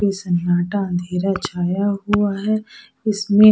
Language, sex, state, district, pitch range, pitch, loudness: Hindi, female, Odisha, Sambalpur, 180-210 Hz, 200 Hz, -20 LUFS